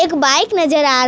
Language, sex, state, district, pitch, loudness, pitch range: Hindi, female, West Bengal, Alipurduar, 300 Hz, -13 LUFS, 270-335 Hz